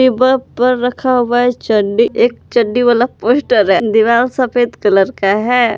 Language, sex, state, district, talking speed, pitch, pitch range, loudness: Hindi, female, Jharkhand, Palamu, 155 wpm, 240 Hz, 225-250 Hz, -13 LUFS